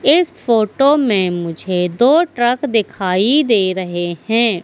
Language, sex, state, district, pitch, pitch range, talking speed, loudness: Hindi, female, Madhya Pradesh, Katni, 225 Hz, 185-265 Hz, 130 wpm, -15 LUFS